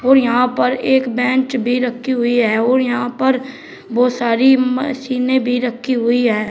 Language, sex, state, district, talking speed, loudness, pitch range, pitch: Hindi, male, Uttar Pradesh, Shamli, 175 wpm, -16 LUFS, 245-260 Hz, 250 Hz